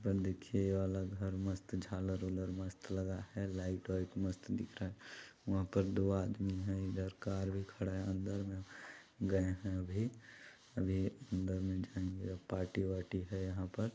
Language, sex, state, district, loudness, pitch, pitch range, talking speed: Hindi, male, Chhattisgarh, Balrampur, -40 LUFS, 95 Hz, 95-100 Hz, 170 wpm